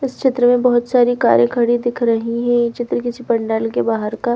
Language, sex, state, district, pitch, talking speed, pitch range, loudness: Hindi, female, Bihar, Katihar, 240 Hz, 235 wpm, 230-245 Hz, -16 LUFS